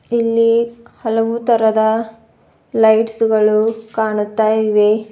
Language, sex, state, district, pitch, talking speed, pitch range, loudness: Kannada, female, Karnataka, Bidar, 225 Hz, 80 wpm, 220-230 Hz, -15 LUFS